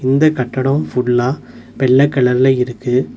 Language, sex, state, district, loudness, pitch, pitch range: Tamil, male, Tamil Nadu, Nilgiris, -15 LUFS, 130 Hz, 125-135 Hz